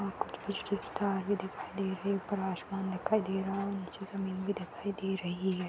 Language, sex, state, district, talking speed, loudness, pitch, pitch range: Hindi, female, Uttar Pradesh, Hamirpur, 190 wpm, -35 LUFS, 195 Hz, 190-200 Hz